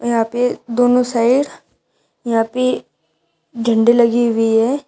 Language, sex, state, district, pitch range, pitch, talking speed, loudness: Hindi, female, Uttar Pradesh, Shamli, 230-245 Hz, 235 Hz, 125 wpm, -16 LUFS